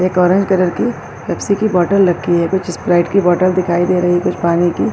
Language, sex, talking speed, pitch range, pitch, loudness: Urdu, female, 255 wpm, 175-185 Hz, 180 Hz, -14 LUFS